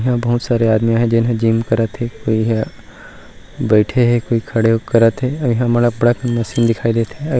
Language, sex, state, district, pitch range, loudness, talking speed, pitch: Chhattisgarhi, male, Chhattisgarh, Rajnandgaon, 115-120 Hz, -16 LUFS, 225 wpm, 115 Hz